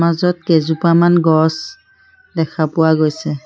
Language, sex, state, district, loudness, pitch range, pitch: Assamese, female, Assam, Sonitpur, -14 LUFS, 160-180 Hz, 170 Hz